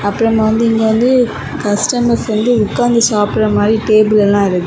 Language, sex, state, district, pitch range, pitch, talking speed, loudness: Tamil, female, Tamil Nadu, Kanyakumari, 210-235 Hz, 220 Hz, 155 wpm, -13 LUFS